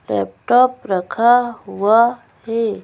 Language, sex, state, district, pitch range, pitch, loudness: Hindi, female, Madhya Pradesh, Bhopal, 190-240 Hz, 230 Hz, -16 LUFS